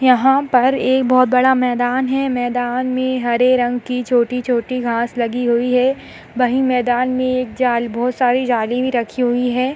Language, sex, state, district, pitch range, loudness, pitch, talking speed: Hindi, female, Uttar Pradesh, Gorakhpur, 245-255 Hz, -17 LUFS, 250 Hz, 180 wpm